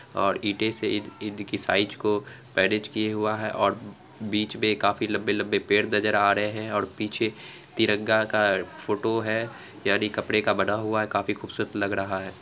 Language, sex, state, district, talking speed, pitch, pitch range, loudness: Angika, female, Bihar, Araria, 185 wpm, 105 Hz, 105-110 Hz, -26 LUFS